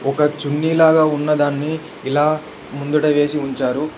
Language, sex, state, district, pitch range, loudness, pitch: Telugu, male, Telangana, Hyderabad, 145-155 Hz, -17 LUFS, 150 Hz